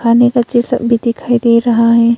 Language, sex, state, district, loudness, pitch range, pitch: Hindi, female, Arunachal Pradesh, Longding, -12 LUFS, 235-240 Hz, 235 Hz